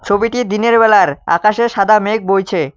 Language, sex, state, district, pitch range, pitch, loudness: Bengali, male, West Bengal, Cooch Behar, 195-230 Hz, 210 Hz, -13 LUFS